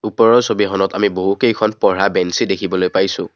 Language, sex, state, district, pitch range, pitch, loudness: Assamese, male, Assam, Kamrup Metropolitan, 95-110 Hz, 100 Hz, -15 LUFS